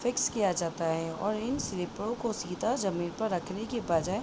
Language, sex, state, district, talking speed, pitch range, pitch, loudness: Hindi, female, Jharkhand, Jamtara, 215 wpm, 175-230 Hz, 195 Hz, -32 LUFS